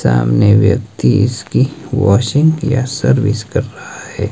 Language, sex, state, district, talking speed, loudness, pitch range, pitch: Hindi, male, Himachal Pradesh, Shimla, 125 wpm, -14 LUFS, 100-135 Hz, 115 Hz